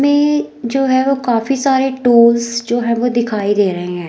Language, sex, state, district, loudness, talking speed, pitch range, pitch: Hindi, female, Himachal Pradesh, Shimla, -14 LUFS, 205 wpm, 235-270 Hz, 240 Hz